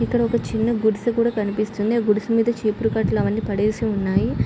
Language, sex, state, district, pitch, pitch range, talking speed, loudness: Telugu, female, Andhra Pradesh, Srikakulam, 220 Hz, 210-230 Hz, 160 wpm, -21 LUFS